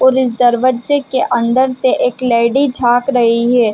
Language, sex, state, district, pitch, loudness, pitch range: Hindi, female, Chhattisgarh, Bilaspur, 250 Hz, -13 LUFS, 240-260 Hz